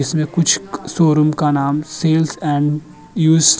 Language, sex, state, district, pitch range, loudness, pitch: Hindi, male, Uttar Pradesh, Jyotiba Phule Nagar, 150-160 Hz, -16 LUFS, 155 Hz